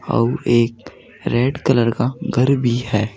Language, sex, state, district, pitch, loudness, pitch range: Hindi, male, Uttar Pradesh, Saharanpur, 120 Hz, -18 LUFS, 115-130 Hz